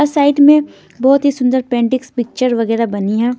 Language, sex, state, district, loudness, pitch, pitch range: Hindi, female, Bihar, Patna, -14 LUFS, 250 Hz, 230-285 Hz